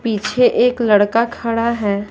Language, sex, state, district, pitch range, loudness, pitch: Hindi, female, Bihar, Patna, 210-235 Hz, -16 LUFS, 230 Hz